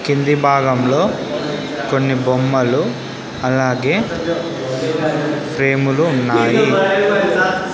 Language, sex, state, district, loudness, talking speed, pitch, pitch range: Telugu, male, Telangana, Komaram Bheem, -16 LUFS, 60 wpm, 140 Hz, 130-165 Hz